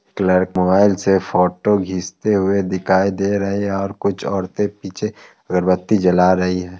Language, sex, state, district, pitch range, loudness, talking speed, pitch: Hindi, male, Bihar, Kishanganj, 90-100 Hz, -18 LUFS, 160 wpm, 95 Hz